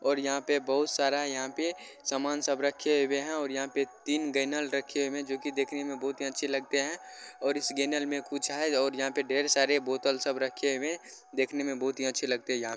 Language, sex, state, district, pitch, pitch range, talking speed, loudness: Maithili, male, Bihar, Vaishali, 140 Hz, 135-145 Hz, 245 wpm, -30 LUFS